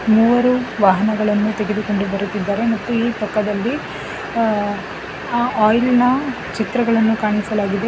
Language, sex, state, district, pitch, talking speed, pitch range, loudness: Kannada, female, Karnataka, Bangalore, 215 Hz, 100 wpm, 210-235 Hz, -18 LUFS